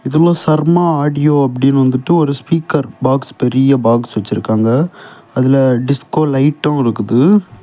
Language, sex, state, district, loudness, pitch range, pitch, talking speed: Tamil, male, Tamil Nadu, Kanyakumari, -13 LUFS, 125-155 Hz, 135 Hz, 110 wpm